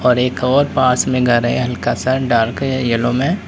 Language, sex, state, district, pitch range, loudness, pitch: Hindi, male, Uttar Pradesh, Lalitpur, 120-130 Hz, -16 LUFS, 125 Hz